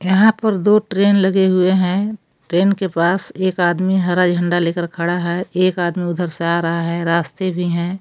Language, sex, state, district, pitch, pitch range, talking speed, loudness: Hindi, female, Jharkhand, Palamu, 180 Hz, 170-190 Hz, 200 wpm, -17 LUFS